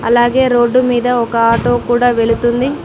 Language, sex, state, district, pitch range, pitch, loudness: Telugu, female, Telangana, Mahabubabad, 235-245 Hz, 240 Hz, -12 LUFS